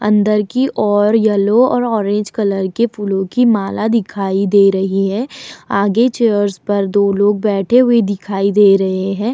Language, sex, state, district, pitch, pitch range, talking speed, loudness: Hindi, female, Uttar Pradesh, Muzaffarnagar, 205 Hz, 195-225 Hz, 165 wpm, -14 LUFS